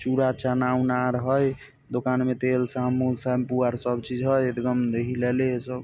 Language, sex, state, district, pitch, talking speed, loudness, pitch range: Maithili, male, Bihar, Samastipur, 125 Hz, 175 wpm, -25 LUFS, 125-130 Hz